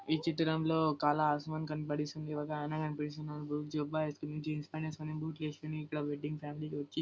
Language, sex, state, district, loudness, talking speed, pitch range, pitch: Telugu, female, Andhra Pradesh, Anantapur, -37 LUFS, 135 wpm, 150-155 Hz, 150 Hz